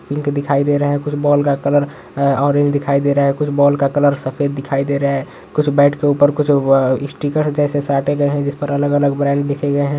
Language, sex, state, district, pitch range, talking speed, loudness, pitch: Hindi, male, Uttarakhand, Uttarkashi, 140-145 Hz, 250 wpm, -16 LUFS, 145 Hz